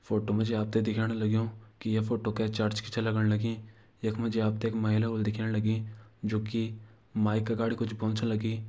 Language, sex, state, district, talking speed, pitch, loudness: Garhwali, male, Uttarakhand, Uttarkashi, 230 wpm, 110 Hz, -31 LUFS